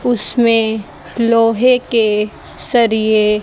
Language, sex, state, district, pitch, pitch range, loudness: Hindi, female, Haryana, Jhajjar, 225 Hz, 215-235 Hz, -14 LUFS